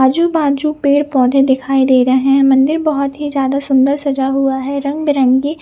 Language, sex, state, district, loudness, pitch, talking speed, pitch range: Hindi, female, Punjab, Fazilka, -13 LUFS, 275 Hz, 205 wpm, 265-290 Hz